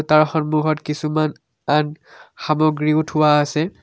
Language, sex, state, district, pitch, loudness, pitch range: Assamese, male, Assam, Kamrup Metropolitan, 155 Hz, -19 LUFS, 150-155 Hz